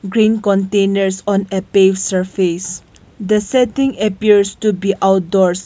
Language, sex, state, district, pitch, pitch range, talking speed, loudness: English, female, Nagaland, Kohima, 195 Hz, 190-210 Hz, 125 wpm, -15 LUFS